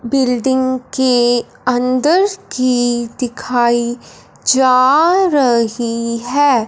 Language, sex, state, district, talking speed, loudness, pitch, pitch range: Hindi, female, Punjab, Fazilka, 70 wpm, -15 LUFS, 255 Hz, 240-265 Hz